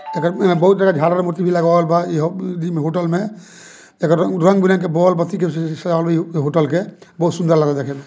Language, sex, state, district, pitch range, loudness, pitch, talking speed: Bhojpuri, male, Bihar, Muzaffarpur, 165-185 Hz, -17 LUFS, 170 Hz, 200 wpm